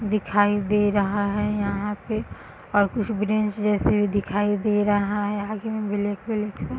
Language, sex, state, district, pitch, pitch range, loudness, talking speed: Hindi, female, Bihar, East Champaran, 205 Hz, 205-210 Hz, -24 LUFS, 175 wpm